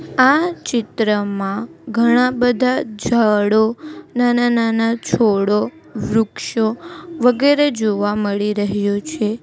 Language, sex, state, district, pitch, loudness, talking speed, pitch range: Gujarati, female, Gujarat, Valsad, 235 Hz, -17 LUFS, 85 wpm, 210-255 Hz